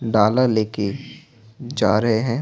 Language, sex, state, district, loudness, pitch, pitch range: Hindi, male, Bihar, Patna, -20 LUFS, 110 Hz, 110-125 Hz